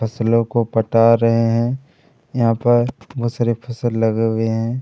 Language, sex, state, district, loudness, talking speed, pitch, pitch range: Hindi, male, Chhattisgarh, Kabirdham, -18 LUFS, 160 wpm, 115 Hz, 115-120 Hz